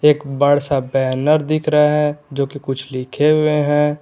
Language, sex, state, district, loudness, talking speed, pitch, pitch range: Hindi, male, Jharkhand, Garhwa, -17 LUFS, 195 wpm, 145 Hz, 140-150 Hz